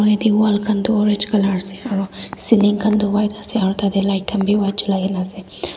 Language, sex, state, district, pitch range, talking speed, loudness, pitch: Nagamese, female, Nagaland, Dimapur, 195-210 Hz, 240 wpm, -18 LUFS, 205 Hz